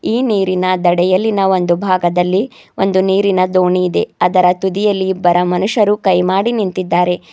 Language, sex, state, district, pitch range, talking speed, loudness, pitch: Kannada, female, Karnataka, Bidar, 180-195 Hz, 115 wpm, -14 LUFS, 185 Hz